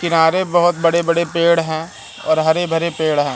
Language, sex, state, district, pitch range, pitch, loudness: Hindi, male, Madhya Pradesh, Katni, 160-170 Hz, 165 Hz, -16 LUFS